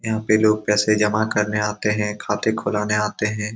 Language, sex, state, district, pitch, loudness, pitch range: Hindi, male, Bihar, Saran, 105 Hz, -20 LUFS, 105-110 Hz